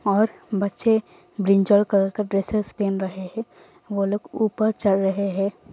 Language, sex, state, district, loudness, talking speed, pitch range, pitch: Hindi, female, Andhra Pradesh, Anantapur, -22 LUFS, 155 wpm, 195-215 Hz, 200 Hz